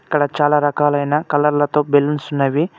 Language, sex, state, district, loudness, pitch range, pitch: Telugu, male, Telangana, Mahabubabad, -17 LUFS, 145-150 Hz, 145 Hz